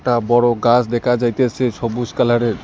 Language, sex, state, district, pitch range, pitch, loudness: Bengali, male, West Bengal, Cooch Behar, 120-125 Hz, 120 Hz, -17 LUFS